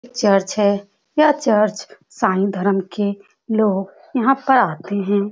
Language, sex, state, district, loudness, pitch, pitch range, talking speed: Hindi, female, Bihar, Saran, -18 LUFS, 205 Hz, 200-245 Hz, 170 wpm